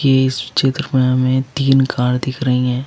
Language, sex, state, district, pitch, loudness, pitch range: Hindi, male, Uttar Pradesh, Lucknow, 130 Hz, -16 LUFS, 125-135 Hz